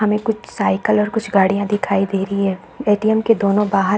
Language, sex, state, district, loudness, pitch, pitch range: Hindi, female, Bihar, Saran, -18 LUFS, 205 Hz, 195-215 Hz